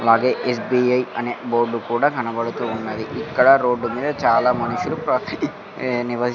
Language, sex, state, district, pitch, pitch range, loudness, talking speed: Telugu, male, Andhra Pradesh, Sri Satya Sai, 120 Hz, 115-125 Hz, -20 LUFS, 130 wpm